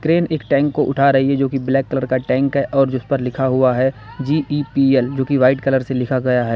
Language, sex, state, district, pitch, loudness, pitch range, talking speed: Hindi, male, Uttar Pradesh, Lalitpur, 135 Hz, -17 LUFS, 130-140 Hz, 265 wpm